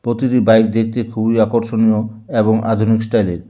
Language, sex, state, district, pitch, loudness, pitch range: Bengali, male, West Bengal, Alipurduar, 110 Hz, -15 LUFS, 110-115 Hz